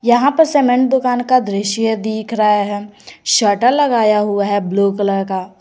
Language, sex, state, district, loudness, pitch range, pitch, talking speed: Hindi, female, Jharkhand, Garhwa, -15 LUFS, 205-245 Hz, 220 Hz, 170 wpm